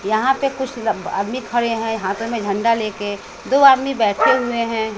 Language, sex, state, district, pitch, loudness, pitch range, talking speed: Hindi, female, Bihar, West Champaran, 225 Hz, -18 LUFS, 210-250 Hz, 205 wpm